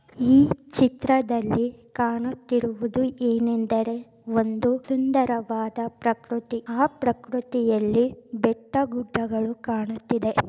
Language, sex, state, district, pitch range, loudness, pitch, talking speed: Kannada, female, Karnataka, Chamarajanagar, 230-250 Hz, -24 LUFS, 235 Hz, 70 wpm